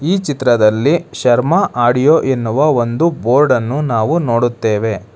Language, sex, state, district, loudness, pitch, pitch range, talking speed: Kannada, male, Karnataka, Bangalore, -14 LUFS, 120 Hz, 115-150 Hz, 105 wpm